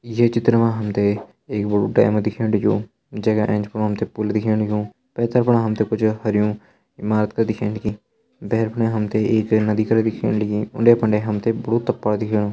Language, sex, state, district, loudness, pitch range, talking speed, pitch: Hindi, male, Uttarakhand, Uttarkashi, -20 LUFS, 105-115 Hz, 205 wpm, 110 Hz